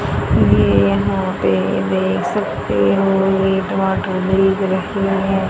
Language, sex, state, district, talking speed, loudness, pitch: Hindi, female, Haryana, Charkhi Dadri, 100 wpm, -16 LUFS, 185 Hz